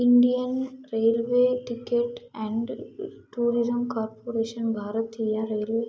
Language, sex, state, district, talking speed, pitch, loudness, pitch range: Kannada, female, Karnataka, Mysore, 90 wpm, 235 Hz, -26 LUFS, 225-245 Hz